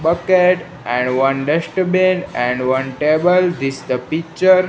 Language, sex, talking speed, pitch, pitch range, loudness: English, male, 130 wpm, 160 Hz, 135-180 Hz, -17 LUFS